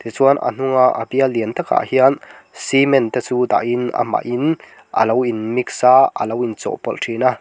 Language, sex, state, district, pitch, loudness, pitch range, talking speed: Mizo, male, Mizoram, Aizawl, 125 Hz, -17 LUFS, 115-135 Hz, 180 wpm